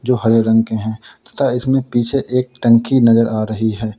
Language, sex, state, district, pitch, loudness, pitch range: Hindi, male, Uttar Pradesh, Lalitpur, 115 Hz, -15 LUFS, 110-125 Hz